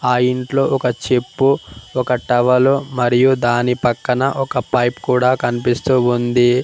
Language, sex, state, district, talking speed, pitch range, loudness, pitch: Telugu, male, Telangana, Mahabubabad, 125 wpm, 120-130 Hz, -16 LUFS, 125 Hz